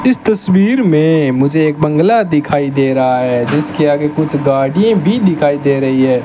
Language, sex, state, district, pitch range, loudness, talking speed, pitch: Hindi, male, Rajasthan, Bikaner, 135-185 Hz, -12 LUFS, 180 wpm, 150 Hz